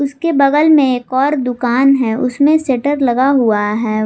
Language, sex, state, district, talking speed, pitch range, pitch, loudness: Hindi, female, Jharkhand, Garhwa, 190 wpm, 245-280 Hz, 260 Hz, -13 LUFS